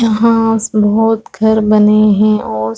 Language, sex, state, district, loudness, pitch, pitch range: Hindi, female, Chhattisgarh, Rajnandgaon, -11 LUFS, 215 Hz, 210-225 Hz